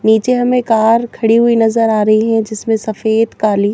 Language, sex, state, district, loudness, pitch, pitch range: Hindi, female, Madhya Pradesh, Bhopal, -13 LUFS, 225 Hz, 220-230 Hz